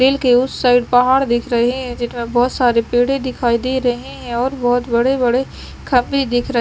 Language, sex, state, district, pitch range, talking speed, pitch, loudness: Hindi, female, Chandigarh, Chandigarh, 240-260 Hz, 220 wpm, 245 Hz, -16 LUFS